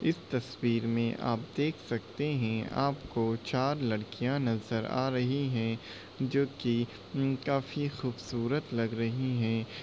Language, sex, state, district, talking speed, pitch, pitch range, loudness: Hindi, male, Jharkhand, Sahebganj, 140 wpm, 120 Hz, 115-135 Hz, -32 LUFS